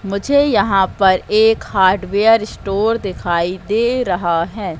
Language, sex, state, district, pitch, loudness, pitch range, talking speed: Hindi, female, Madhya Pradesh, Katni, 200 Hz, -15 LUFS, 185-220 Hz, 125 wpm